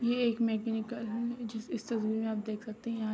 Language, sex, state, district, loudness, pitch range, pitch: Hindi, female, Jharkhand, Sahebganj, -34 LUFS, 220-235 Hz, 225 Hz